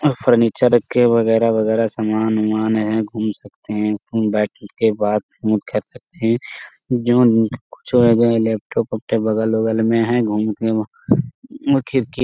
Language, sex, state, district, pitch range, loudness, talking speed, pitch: Hindi, male, Bihar, Jamui, 110-115 Hz, -18 LUFS, 110 wpm, 110 Hz